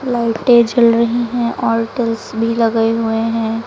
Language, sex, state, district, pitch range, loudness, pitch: Hindi, female, Uttar Pradesh, Lucknow, 225-235 Hz, -15 LUFS, 230 Hz